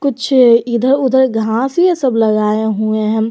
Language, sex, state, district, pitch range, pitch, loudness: Hindi, female, Jharkhand, Garhwa, 220-265 Hz, 235 Hz, -13 LUFS